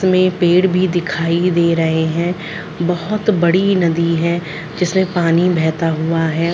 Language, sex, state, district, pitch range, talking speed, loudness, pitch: Hindi, female, Chhattisgarh, Raigarh, 165-180 Hz, 145 wpm, -16 LUFS, 170 Hz